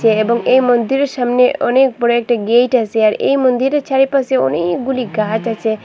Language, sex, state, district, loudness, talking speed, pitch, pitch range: Bengali, female, Assam, Hailakandi, -14 LUFS, 175 wpm, 245 Hz, 225-265 Hz